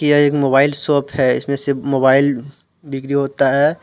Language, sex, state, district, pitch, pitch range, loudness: Hindi, male, Jharkhand, Deoghar, 140 Hz, 135-145 Hz, -16 LUFS